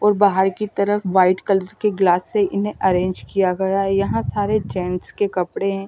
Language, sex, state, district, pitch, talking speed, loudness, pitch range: Hindi, female, Delhi, New Delhi, 195 Hz, 205 wpm, -19 LUFS, 185-205 Hz